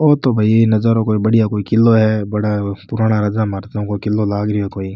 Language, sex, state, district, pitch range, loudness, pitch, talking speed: Rajasthani, male, Rajasthan, Nagaur, 105-110 Hz, -16 LUFS, 105 Hz, 220 wpm